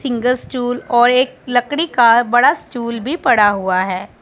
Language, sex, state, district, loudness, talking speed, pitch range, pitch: Hindi, female, Punjab, Pathankot, -15 LUFS, 170 wpm, 235-255 Hz, 245 Hz